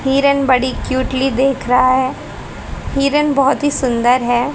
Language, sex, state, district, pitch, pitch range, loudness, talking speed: Hindi, female, Haryana, Charkhi Dadri, 265 Hz, 255-275 Hz, -15 LUFS, 145 wpm